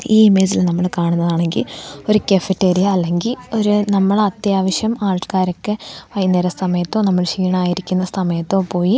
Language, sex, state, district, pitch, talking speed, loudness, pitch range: Malayalam, female, Kerala, Thiruvananthapuram, 190 Hz, 115 wpm, -17 LUFS, 180-205 Hz